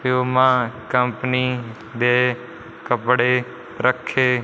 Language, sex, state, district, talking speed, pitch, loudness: Punjabi, male, Punjab, Fazilka, 65 wpm, 125 Hz, -20 LUFS